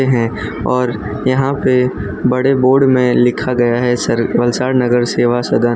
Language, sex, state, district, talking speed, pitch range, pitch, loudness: Hindi, male, Gujarat, Valsad, 165 wpm, 120-130 Hz, 125 Hz, -14 LUFS